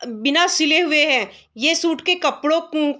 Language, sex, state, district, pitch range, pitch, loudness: Hindi, female, Bihar, Sitamarhi, 280-330 Hz, 310 Hz, -17 LUFS